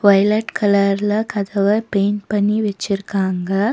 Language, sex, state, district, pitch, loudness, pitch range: Tamil, female, Tamil Nadu, Nilgiris, 205 Hz, -18 LUFS, 200-210 Hz